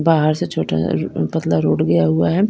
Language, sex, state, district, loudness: Hindi, female, Bihar, Patna, -18 LUFS